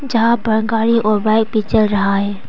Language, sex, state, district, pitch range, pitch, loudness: Hindi, female, Arunachal Pradesh, Papum Pare, 210-225 Hz, 220 Hz, -15 LUFS